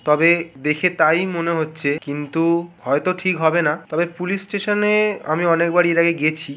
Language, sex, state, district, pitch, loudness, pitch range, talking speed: Bengali, male, West Bengal, Kolkata, 170 Hz, -19 LUFS, 155-180 Hz, 185 wpm